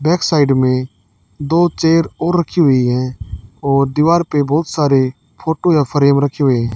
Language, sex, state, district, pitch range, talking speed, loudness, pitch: Hindi, female, Haryana, Charkhi Dadri, 130-160 Hz, 170 wpm, -15 LUFS, 140 Hz